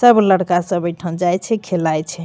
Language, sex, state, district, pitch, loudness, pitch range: Maithili, female, Bihar, Begusarai, 175 Hz, -17 LUFS, 170-190 Hz